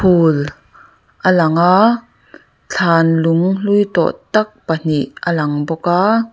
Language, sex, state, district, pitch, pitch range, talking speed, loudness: Mizo, female, Mizoram, Aizawl, 175 Hz, 165-200 Hz, 135 wpm, -15 LUFS